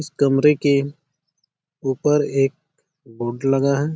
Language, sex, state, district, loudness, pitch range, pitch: Hindi, male, Chhattisgarh, Bastar, -20 LUFS, 135-155 Hz, 145 Hz